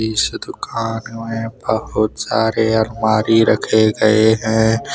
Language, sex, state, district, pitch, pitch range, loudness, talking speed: Hindi, male, Jharkhand, Deoghar, 110 Hz, 110-115 Hz, -17 LUFS, 110 wpm